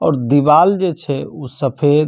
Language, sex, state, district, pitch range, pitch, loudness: Maithili, male, Bihar, Samastipur, 140-155 Hz, 145 Hz, -15 LUFS